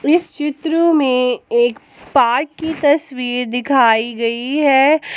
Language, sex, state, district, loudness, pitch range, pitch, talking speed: Hindi, female, Jharkhand, Ranchi, -16 LUFS, 245-315 Hz, 280 Hz, 115 wpm